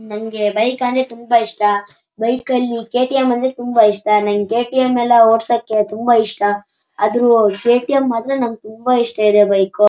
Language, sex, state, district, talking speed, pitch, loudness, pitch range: Kannada, male, Karnataka, Shimoga, 150 wpm, 230 Hz, -15 LUFS, 210-245 Hz